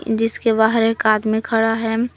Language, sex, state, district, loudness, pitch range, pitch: Hindi, female, Jharkhand, Palamu, -18 LUFS, 220-225 Hz, 225 Hz